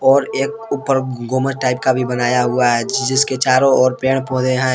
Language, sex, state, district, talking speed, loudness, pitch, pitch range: Hindi, male, Jharkhand, Palamu, 200 wpm, -16 LUFS, 130 Hz, 125-135 Hz